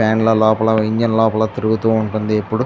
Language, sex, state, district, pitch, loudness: Telugu, male, Andhra Pradesh, Chittoor, 110 Hz, -16 LUFS